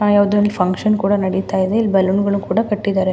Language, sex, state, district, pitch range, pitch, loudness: Kannada, female, Karnataka, Mysore, 190-210 Hz, 200 Hz, -17 LUFS